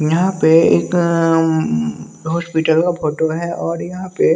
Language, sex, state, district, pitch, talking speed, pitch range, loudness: Hindi, male, Bihar, West Champaran, 165 Hz, 150 wpm, 160-170 Hz, -16 LUFS